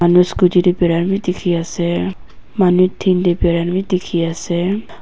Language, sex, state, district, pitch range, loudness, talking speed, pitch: Nagamese, female, Nagaland, Dimapur, 170-185 Hz, -16 LUFS, 170 wpm, 180 Hz